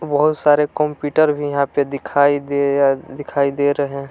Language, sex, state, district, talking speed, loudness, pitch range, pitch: Hindi, male, Jharkhand, Palamu, 190 wpm, -18 LUFS, 140-150 Hz, 145 Hz